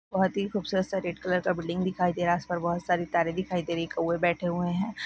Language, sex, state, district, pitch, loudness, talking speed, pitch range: Hindi, female, Rajasthan, Nagaur, 175 Hz, -28 LUFS, 285 wpm, 175-185 Hz